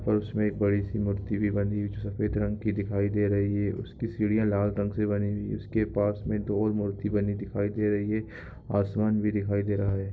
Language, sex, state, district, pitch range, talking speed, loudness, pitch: Hindi, male, Jharkhand, Sahebganj, 100-105 Hz, 250 wpm, -28 LUFS, 105 Hz